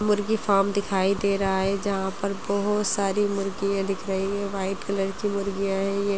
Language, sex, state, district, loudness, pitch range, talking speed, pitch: Hindi, female, Bihar, Gaya, -25 LUFS, 195-200 Hz, 195 wpm, 200 Hz